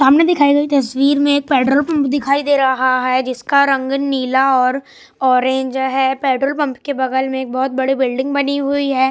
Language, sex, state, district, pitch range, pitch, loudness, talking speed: Hindi, male, Bihar, West Champaran, 260-280 Hz, 270 Hz, -15 LUFS, 185 wpm